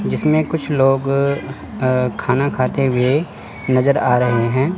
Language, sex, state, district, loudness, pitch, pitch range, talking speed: Hindi, male, Chandigarh, Chandigarh, -17 LUFS, 135 Hz, 125-140 Hz, 140 wpm